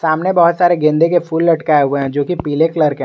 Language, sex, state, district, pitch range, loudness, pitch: Hindi, male, Jharkhand, Garhwa, 150-170 Hz, -14 LUFS, 160 Hz